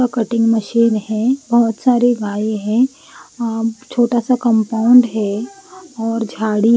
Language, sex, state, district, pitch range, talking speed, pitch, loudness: Hindi, female, Punjab, Pathankot, 220-245 Hz, 140 wpm, 230 Hz, -16 LUFS